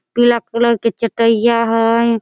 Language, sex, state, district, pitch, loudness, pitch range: Maithili, female, Bihar, Samastipur, 230 Hz, -14 LUFS, 230-235 Hz